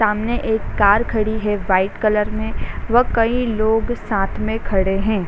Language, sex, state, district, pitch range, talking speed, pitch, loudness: Hindi, female, Bihar, Sitamarhi, 205-225 Hz, 195 wpm, 215 Hz, -19 LUFS